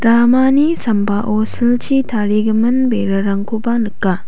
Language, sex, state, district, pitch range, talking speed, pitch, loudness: Garo, female, Meghalaya, South Garo Hills, 205-245 Hz, 85 wpm, 225 Hz, -15 LUFS